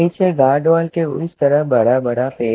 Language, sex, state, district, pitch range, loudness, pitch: Hindi, male, Himachal Pradesh, Shimla, 130-165 Hz, -16 LUFS, 150 Hz